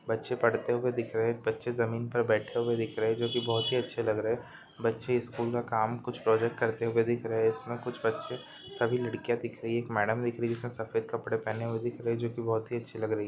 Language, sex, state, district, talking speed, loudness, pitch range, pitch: Hindi, male, Rajasthan, Nagaur, 255 wpm, -31 LUFS, 115-120 Hz, 115 Hz